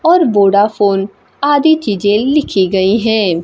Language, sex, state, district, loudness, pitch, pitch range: Hindi, female, Bihar, Kaimur, -12 LUFS, 210 Hz, 195-285 Hz